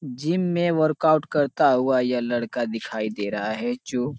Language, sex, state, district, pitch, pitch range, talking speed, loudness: Hindi, male, Uttar Pradesh, Ghazipur, 125 Hz, 120-155 Hz, 200 wpm, -23 LUFS